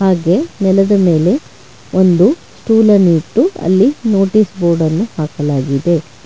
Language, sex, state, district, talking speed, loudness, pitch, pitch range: Kannada, female, Karnataka, Bangalore, 115 wpm, -13 LUFS, 180 Hz, 160-200 Hz